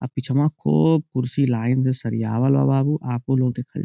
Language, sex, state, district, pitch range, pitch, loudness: Bhojpuri, male, Uttar Pradesh, Gorakhpur, 120-140 Hz, 130 Hz, -21 LUFS